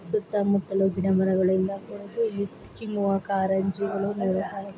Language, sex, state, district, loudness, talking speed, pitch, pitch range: Kannada, female, Karnataka, Mysore, -26 LUFS, 240 wpm, 195 Hz, 190-200 Hz